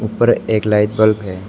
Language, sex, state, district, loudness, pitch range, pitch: Hindi, male, Arunachal Pradesh, Lower Dibang Valley, -15 LUFS, 105-110 Hz, 110 Hz